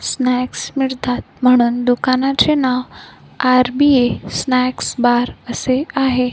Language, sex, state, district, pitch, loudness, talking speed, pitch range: Marathi, female, Maharashtra, Gondia, 255 Hz, -16 LUFS, 95 wpm, 250-265 Hz